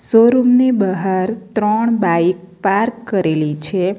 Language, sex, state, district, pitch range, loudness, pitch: Gujarati, female, Gujarat, Navsari, 185-225 Hz, -16 LUFS, 195 Hz